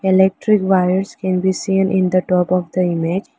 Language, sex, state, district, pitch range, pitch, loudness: English, female, Arunachal Pradesh, Lower Dibang Valley, 180-190 Hz, 185 Hz, -17 LUFS